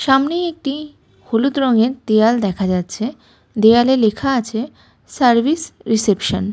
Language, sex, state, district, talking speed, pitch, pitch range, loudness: Bengali, female, West Bengal, Malda, 120 wpm, 235 Hz, 220-270 Hz, -17 LUFS